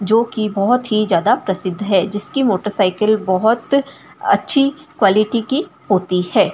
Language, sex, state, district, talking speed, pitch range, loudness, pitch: Hindi, female, Bihar, Samastipur, 140 wpm, 195-245 Hz, -17 LUFS, 215 Hz